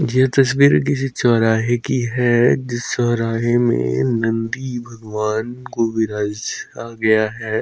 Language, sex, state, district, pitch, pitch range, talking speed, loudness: Hindi, male, Chhattisgarh, Sukma, 115 Hz, 110-125 Hz, 120 wpm, -18 LUFS